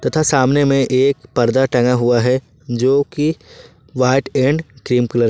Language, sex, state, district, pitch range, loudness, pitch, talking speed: Hindi, male, Jharkhand, Ranchi, 125-140 Hz, -16 LUFS, 130 Hz, 170 wpm